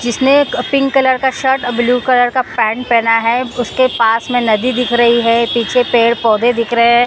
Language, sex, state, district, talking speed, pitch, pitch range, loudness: Hindi, female, Maharashtra, Mumbai Suburban, 195 wpm, 245 Hz, 235-255 Hz, -13 LUFS